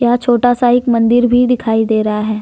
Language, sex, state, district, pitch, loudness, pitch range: Hindi, female, Jharkhand, Deoghar, 240 Hz, -13 LUFS, 220-245 Hz